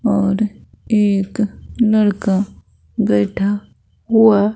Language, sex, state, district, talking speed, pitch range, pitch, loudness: Hindi, female, Bihar, Katihar, 65 wpm, 195-215 Hz, 205 Hz, -17 LUFS